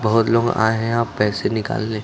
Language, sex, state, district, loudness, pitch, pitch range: Hindi, male, Uttar Pradesh, Lucknow, -19 LUFS, 115 Hz, 110-115 Hz